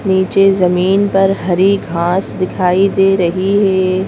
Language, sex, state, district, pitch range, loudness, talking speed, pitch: Hindi, female, Madhya Pradesh, Bhopal, 185-195 Hz, -13 LUFS, 130 wpm, 190 Hz